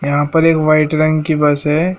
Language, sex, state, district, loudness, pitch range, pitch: Hindi, male, Uttar Pradesh, Shamli, -13 LUFS, 150-160 Hz, 155 Hz